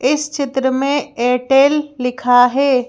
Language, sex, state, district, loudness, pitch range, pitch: Hindi, female, Madhya Pradesh, Bhopal, -15 LUFS, 250-280 Hz, 265 Hz